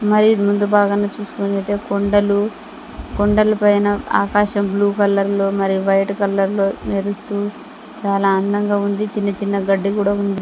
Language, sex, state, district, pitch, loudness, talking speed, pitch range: Telugu, female, Telangana, Mahabubabad, 205 Hz, -17 LUFS, 140 wpm, 200-205 Hz